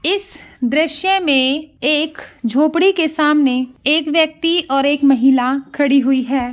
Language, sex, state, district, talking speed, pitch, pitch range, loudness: Hindi, female, Bihar, Begusarai, 140 wpm, 290 Hz, 265-320 Hz, -15 LUFS